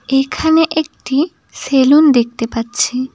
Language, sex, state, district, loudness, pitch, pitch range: Bengali, female, West Bengal, Cooch Behar, -14 LUFS, 270 Hz, 255-315 Hz